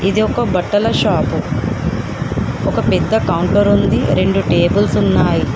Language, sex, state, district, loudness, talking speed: Telugu, female, Telangana, Komaram Bheem, -15 LUFS, 120 wpm